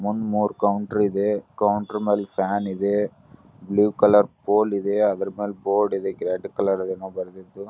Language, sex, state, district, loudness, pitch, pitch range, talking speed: Kannada, male, Karnataka, Gulbarga, -23 LUFS, 100 Hz, 100-105 Hz, 155 wpm